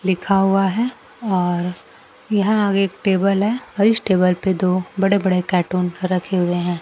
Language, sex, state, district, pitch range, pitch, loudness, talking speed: Hindi, female, Bihar, Kaimur, 180-200 Hz, 190 Hz, -19 LUFS, 175 wpm